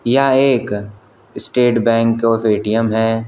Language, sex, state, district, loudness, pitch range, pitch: Hindi, male, Uttar Pradesh, Lucknow, -15 LUFS, 110-120 Hz, 115 Hz